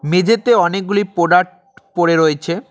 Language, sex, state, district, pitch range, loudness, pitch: Bengali, male, West Bengal, Cooch Behar, 170-205 Hz, -15 LUFS, 180 Hz